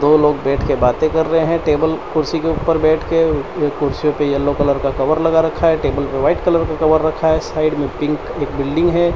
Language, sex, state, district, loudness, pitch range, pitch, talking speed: Hindi, male, Gujarat, Valsad, -16 LUFS, 145-160 Hz, 155 Hz, 235 wpm